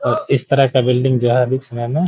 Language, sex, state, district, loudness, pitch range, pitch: Hindi, male, Bihar, Gaya, -16 LUFS, 125-135 Hz, 130 Hz